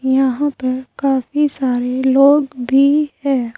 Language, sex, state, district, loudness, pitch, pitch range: Hindi, female, Uttar Pradesh, Saharanpur, -16 LUFS, 265 Hz, 255-280 Hz